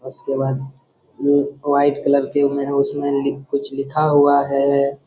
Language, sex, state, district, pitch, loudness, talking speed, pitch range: Hindi, male, Jharkhand, Jamtara, 140 Hz, -18 LUFS, 155 wpm, 140-145 Hz